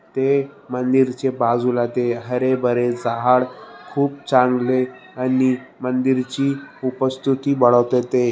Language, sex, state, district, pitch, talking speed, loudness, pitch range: Marathi, male, Maharashtra, Aurangabad, 125 Hz, 115 wpm, -20 LUFS, 125-130 Hz